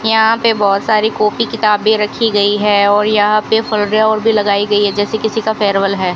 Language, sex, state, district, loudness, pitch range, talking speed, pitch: Hindi, female, Rajasthan, Bikaner, -13 LUFS, 205-220 Hz, 205 wpm, 215 Hz